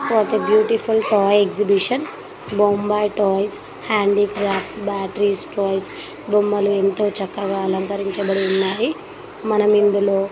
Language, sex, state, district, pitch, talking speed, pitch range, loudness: Telugu, female, Telangana, Nalgonda, 205 Hz, 105 wpm, 195-210 Hz, -19 LUFS